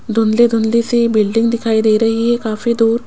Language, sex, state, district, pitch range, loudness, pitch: Hindi, female, Rajasthan, Jaipur, 220-235 Hz, -14 LUFS, 225 Hz